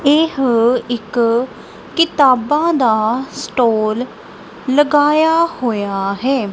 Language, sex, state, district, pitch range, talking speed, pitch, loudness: Punjabi, female, Punjab, Kapurthala, 230-290 Hz, 75 wpm, 250 Hz, -15 LUFS